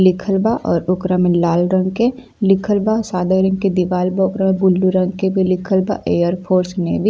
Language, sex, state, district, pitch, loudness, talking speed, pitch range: Bhojpuri, female, Uttar Pradesh, Ghazipur, 185 Hz, -16 LUFS, 230 wpm, 180-195 Hz